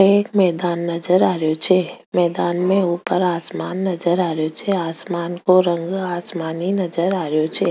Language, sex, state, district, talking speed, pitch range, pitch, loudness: Rajasthani, female, Rajasthan, Nagaur, 170 wpm, 170-185 Hz, 175 Hz, -19 LUFS